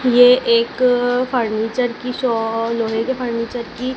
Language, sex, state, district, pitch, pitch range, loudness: Hindi, female, Madhya Pradesh, Dhar, 245 Hz, 230-250 Hz, -18 LUFS